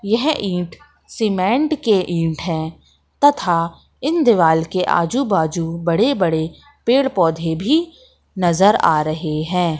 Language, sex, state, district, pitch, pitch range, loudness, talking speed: Hindi, female, Madhya Pradesh, Katni, 180 Hz, 165-250 Hz, -18 LUFS, 130 wpm